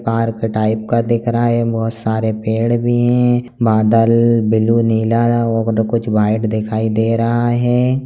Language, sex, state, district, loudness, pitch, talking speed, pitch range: Hindi, male, Bihar, Jamui, -15 LUFS, 115 Hz, 165 wpm, 110-120 Hz